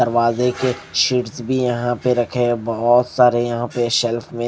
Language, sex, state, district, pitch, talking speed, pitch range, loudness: Hindi, male, Maharashtra, Gondia, 120 Hz, 185 wpm, 120-125 Hz, -18 LUFS